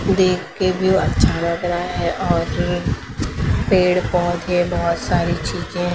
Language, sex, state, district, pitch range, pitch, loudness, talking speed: Hindi, male, Maharashtra, Mumbai Suburban, 175-185 Hz, 175 Hz, -19 LUFS, 130 wpm